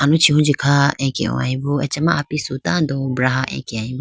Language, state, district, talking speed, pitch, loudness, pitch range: Idu Mishmi, Arunachal Pradesh, Lower Dibang Valley, 150 wpm, 140 Hz, -18 LUFS, 130-150 Hz